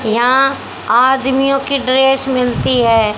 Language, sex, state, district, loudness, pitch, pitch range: Hindi, female, Haryana, Rohtak, -13 LUFS, 260 Hz, 245-270 Hz